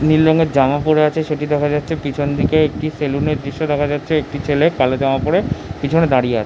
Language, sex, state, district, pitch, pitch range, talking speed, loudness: Bengali, male, West Bengal, Jhargram, 145 Hz, 140-155 Hz, 215 wpm, -17 LUFS